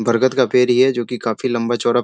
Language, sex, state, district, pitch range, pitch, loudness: Hindi, male, Bihar, Sitamarhi, 120-125 Hz, 120 Hz, -17 LUFS